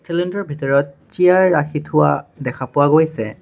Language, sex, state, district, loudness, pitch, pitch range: Assamese, male, Assam, Sonitpur, -17 LUFS, 145 Hz, 135-175 Hz